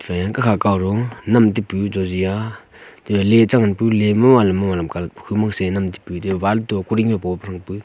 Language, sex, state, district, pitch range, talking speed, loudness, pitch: Wancho, male, Arunachal Pradesh, Longding, 95-110 Hz, 175 wpm, -18 LUFS, 100 Hz